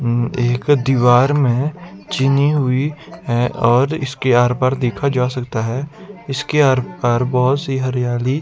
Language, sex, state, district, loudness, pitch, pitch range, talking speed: Hindi, male, Himachal Pradesh, Shimla, -17 LUFS, 130 Hz, 120-140 Hz, 140 wpm